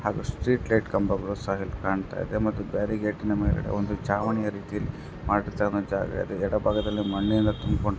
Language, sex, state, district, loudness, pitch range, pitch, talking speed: Kannada, male, Karnataka, Dharwad, -27 LUFS, 100-110 Hz, 105 Hz, 115 wpm